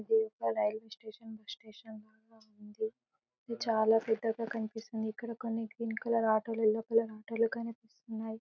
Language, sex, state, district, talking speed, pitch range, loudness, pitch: Telugu, female, Telangana, Karimnagar, 150 wpm, 220-230 Hz, -34 LUFS, 225 Hz